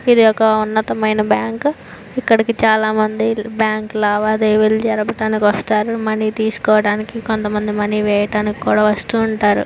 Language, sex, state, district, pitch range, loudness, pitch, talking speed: Telugu, female, Andhra Pradesh, Chittoor, 210-220 Hz, -16 LUFS, 215 Hz, 120 wpm